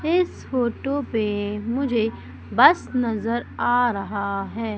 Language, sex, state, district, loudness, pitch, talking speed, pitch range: Hindi, female, Madhya Pradesh, Umaria, -23 LUFS, 230 Hz, 115 wpm, 210-250 Hz